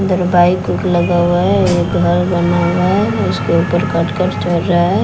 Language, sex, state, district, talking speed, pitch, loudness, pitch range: Hindi, female, Bihar, West Champaran, 200 wpm, 175 Hz, -14 LUFS, 175-180 Hz